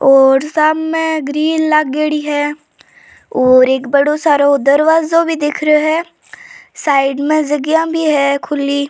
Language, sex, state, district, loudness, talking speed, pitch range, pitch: Rajasthani, female, Rajasthan, Churu, -13 LUFS, 135 wpm, 280-315 Hz, 300 Hz